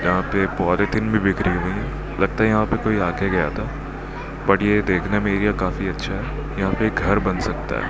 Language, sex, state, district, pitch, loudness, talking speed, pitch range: Hindi, male, Rajasthan, Bikaner, 100 Hz, -21 LUFS, 245 wpm, 95-110 Hz